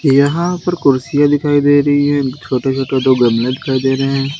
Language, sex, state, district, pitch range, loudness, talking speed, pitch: Hindi, male, Uttar Pradesh, Lalitpur, 130-145 Hz, -14 LUFS, 205 wpm, 135 Hz